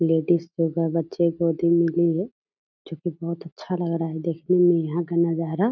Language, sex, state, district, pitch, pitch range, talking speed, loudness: Hindi, female, Bihar, Purnia, 170 Hz, 165-170 Hz, 210 wpm, -23 LUFS